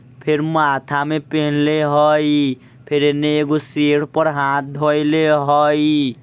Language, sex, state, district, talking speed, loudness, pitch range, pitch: Bajjika, male, Bihar, Vaishali, 125 wpm, -17 LUFS, 145-150 Hz, 150 Hz